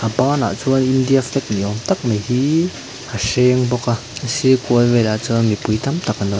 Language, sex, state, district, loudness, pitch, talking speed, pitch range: Mizo, male, Mizoram, Aizawl, -17 LUFS, 120 Hz, 225 wpm, 110-130 Hz